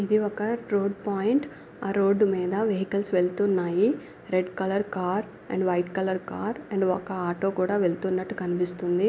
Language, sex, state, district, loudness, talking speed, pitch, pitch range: Telugu, female, Andhra Pradesh, Anantapur, -27 LUFS, 145 wpm, 195 Hz, 185-205 Hz